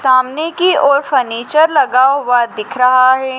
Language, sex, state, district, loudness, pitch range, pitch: Hindi, female, Madhya Pradesh, Dhar, -12 LUFS, 250-290 Hz, 260 Hz